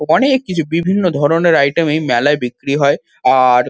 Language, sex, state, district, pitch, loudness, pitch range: Bengali, male, West Bengal, Kolkata, 150 Hz, -14 LUFS, 140-170 Hz